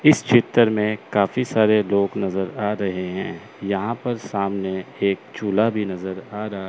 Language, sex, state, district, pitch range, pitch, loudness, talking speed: Hindi, male, Chandigarh, Chandigarh, 95-110 Hz, 100 Hz, -22 LUFS, 170 wpm